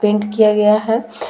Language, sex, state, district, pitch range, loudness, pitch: Hindi, female, Bihar, Vaishali, 210-225 Hz, -14 LUFS, 210 Hz